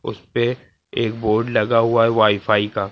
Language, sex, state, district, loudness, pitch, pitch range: Hindi, male, Uttar Pradesh, Lucknow, -19 LUFS, 110 Hz, 105-115 Hz